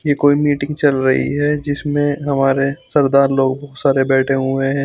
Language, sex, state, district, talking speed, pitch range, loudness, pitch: Hindi, male, Chandigarh, Chandigarh, 185 wpm, 135-145 Hz, -16 LUFS, 140 Hz